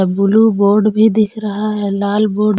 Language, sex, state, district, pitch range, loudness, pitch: Hindi, female, Jharkhand, Palamu, 200-215 Hz, -14 LUFS, 210 Hz